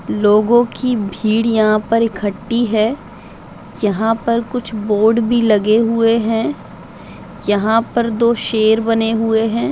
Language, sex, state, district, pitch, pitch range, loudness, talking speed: Hindi, female, Uttar Pradesh, Budaun, 225 Hz, 215-230 Hz, -15 LUFS, 140 wpm